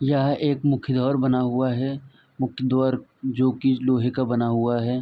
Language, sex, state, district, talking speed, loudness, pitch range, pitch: Hindi, male, Uttar Pradesh, Etah, 190 wpm, -23 LUFS, 125-135 Hz, 130 Hz